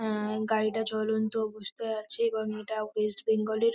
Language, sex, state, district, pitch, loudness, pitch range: Bengali, female, West Bengal, North 24 Parganas, 220 Hz, -30 LUFS, 215-220 Hz